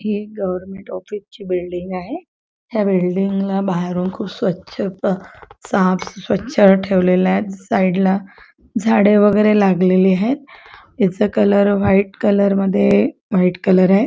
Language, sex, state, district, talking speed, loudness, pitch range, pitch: Marathi, female, Maharashtra, Chandrapur, 110 wpm, -17 LUFS, 185-210 Hz, 195 Hz